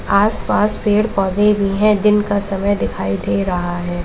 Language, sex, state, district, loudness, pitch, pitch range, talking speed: Hindi, female, Uttar Pradesh, Lalitpur, -17 LUFS, 200 Hz, 180-210 Hz, 175 wpm